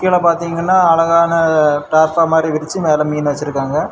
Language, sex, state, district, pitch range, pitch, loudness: Tamil, male, Tamil Nadu, Kanyakumari, 150-170 Hz, 160 Hz, -14 LUFS